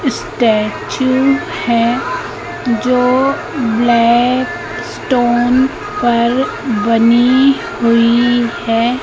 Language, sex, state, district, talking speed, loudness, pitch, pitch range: Hindi, female, Madhya Pradesh, Katni, 60 wpm, -13 LUFS, 245 Hz, 235-260 Hz